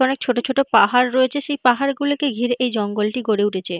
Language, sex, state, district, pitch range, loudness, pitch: Bengali, female, West Bengal, North 24 Parganas, 215-275 Hz, -19 LUFS, 250 Hz